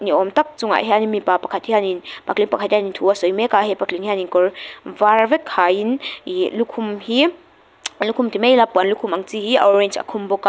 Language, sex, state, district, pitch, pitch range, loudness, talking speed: Mizo, female, Mizoram, Aizawl, 210 Hz, 195-235 Hz, -18 LUFS, 255 wpm